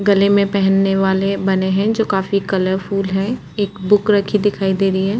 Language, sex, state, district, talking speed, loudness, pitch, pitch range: Hindi, female, Chhattisgarh, Korba, 195 wpm, -17 LUFS, 195 Hz, 190-205 Hz